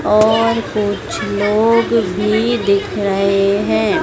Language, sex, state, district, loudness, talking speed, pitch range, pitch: Hindi, female, Madhya Pradesh, Dhar, -15 LUFS, 105 wpm, 200-225 Hz, 210 Hz